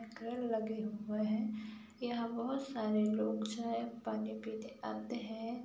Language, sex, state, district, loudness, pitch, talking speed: Hindi, female, Uttar Pradesh, Budaun, -39 LUFS, 215 Hz, 125 wpm